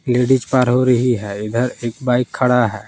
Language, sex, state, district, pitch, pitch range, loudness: Hindi, male, Jharkhand, Palamu, 125 Hz, 115-125 Hz, -17 LUFS